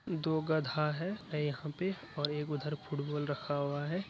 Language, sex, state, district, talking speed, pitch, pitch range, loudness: Hindi, male, Bihar, Araria, 175 wpm, 150 Hz, 145-160 Hz, -36 LUFS